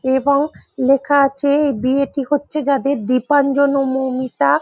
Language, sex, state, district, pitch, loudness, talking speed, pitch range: Bengali, female, West Bengal, Jhargram, 275 Hz, -17 LUFS, 130 wpm, 260-285 Hz